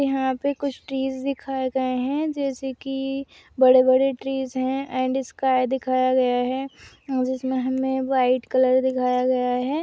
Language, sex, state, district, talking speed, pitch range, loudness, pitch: Hindi, female, Goa, North and South Goa, 150 wpm, 255-270 Hz, -23 LUFS, 260 Hz